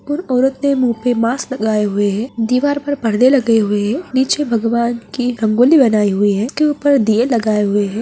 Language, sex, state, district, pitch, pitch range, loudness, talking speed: Hindi, female, Bihar, Jamui, 235 Hz, 220-270 Hz, -15 LUFS, 210 wpm